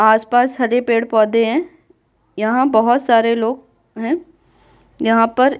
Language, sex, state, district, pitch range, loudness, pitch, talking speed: Hindi, female, Bihar, Kishanganj, 225-260 Hz, -16 LUFS, 235 Hz, 130 wpm